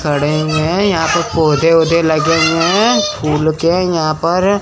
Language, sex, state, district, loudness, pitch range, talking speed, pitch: Hindi, male, Chandigarh, Chandigarh, -13 LUFS, 155-175 Hz, 180 wpm, 165 Hz